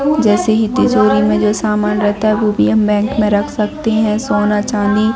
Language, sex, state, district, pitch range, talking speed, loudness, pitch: Hindi, female, Jharkhand, Jamtara, 205-220 Hz, 210 wpm, -14 LUFS, 210 Hz